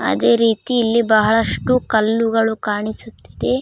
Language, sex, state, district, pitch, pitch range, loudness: Kannada, female, Karnataka, Raichur, 225 Hz, 215-230 Hz, -17 LUFS